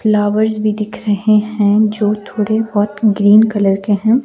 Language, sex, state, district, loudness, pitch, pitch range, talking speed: Hindi, female, Himachal Pradesh, Shimla, -14 LUFS, 210 Hz, 205-215 Hz, 170 wpm